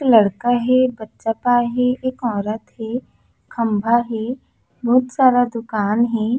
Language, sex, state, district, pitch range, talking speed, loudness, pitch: Chhattisgarhi, female, Chhattisgarh, Raigarh, 225-250 Hz, 130 wpm, -19 LUFS, 240 Hz